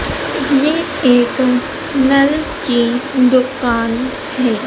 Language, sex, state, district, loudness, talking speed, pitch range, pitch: Hindi, female, Madhya Pradesh, Dhar, -15 LUFS, 75 wpm, 245-285 Hz, 260 Hz